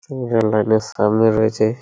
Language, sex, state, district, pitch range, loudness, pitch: Bengali, male, West Bengal, Purulia, 110-115 Hz, -17 LUFS, 110 Hz